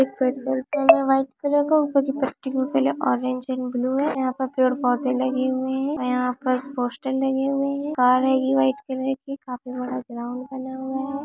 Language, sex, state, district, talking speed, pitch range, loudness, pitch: Hindi, female, Chhattisgarh, Raigarh, 215 wpm, 255-270 Hz, -23 LUFS, 265 Hz